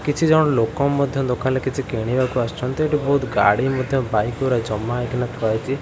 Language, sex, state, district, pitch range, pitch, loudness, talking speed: Odia, male, Odisha, Khordha, 120-140 Hz, 130 Hz, -20 LUFS, 195 wpm